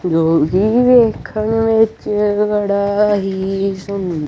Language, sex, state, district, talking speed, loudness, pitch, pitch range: Punjabi, male, Punjab, Kapurthala, 85 wpm, -15 LUFS, 200 Hz, 190-215 Hz